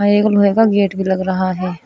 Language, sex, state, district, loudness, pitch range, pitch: Hindi, female, Uttar Pradesh, Shamli, -15 LUFS, 185-205 Hz, 195 Hz